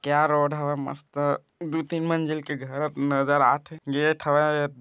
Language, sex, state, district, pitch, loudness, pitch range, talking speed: Chhattisgarhi, male, Chhattisgarh, Bilaspur, 150 Hz, -25 LUFS, 145-155 Hz, 175 wpm